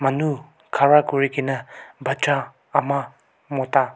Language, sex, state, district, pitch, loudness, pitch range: Nagamese, male, Nagaland, Kohima, 140 Hz, -21 LUFS, 135-145 Hz